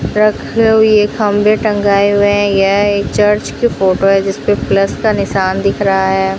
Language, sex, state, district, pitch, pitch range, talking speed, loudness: Hindi, female, Rajasthan, Bikaner, 205 Hz, 195-210 Hz, 180 wpm, -12 LUFS